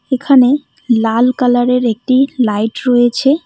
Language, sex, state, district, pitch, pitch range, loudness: Bengali, female, West Bengal, Cooch Behar, 250 Hz, 235-260 Hz, -13 LUFS